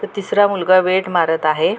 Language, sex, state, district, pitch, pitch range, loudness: Marathi, female, Maharashtra, Pune, 185 Hz, 170-200 Hz, -16 LUFS